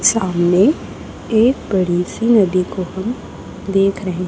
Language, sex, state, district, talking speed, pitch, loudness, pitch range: Hindi, female, Chhattisgarh, Raipur, 125 wpm, 195 Hz, -16 LUFS, 180-225 Hz